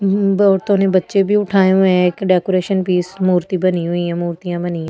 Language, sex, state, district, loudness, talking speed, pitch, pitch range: Hindi, female, Delhi, New Delhi, -16 LUFS, 210 wpm, 185 Hz, 175-195 Hz